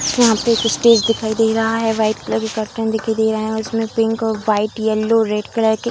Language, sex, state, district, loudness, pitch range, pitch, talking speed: Hindi, female, Bihar, Kishanganj, -17 LUFS, 220-225 Hz, 225 Hz, 255 wpm